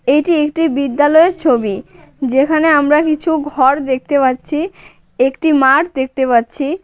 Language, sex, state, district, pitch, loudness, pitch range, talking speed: Bengali, female, West Bengal, Cooch Behar, 285 Hz, -14 LUFS, 265-310 Hz, 125 wpm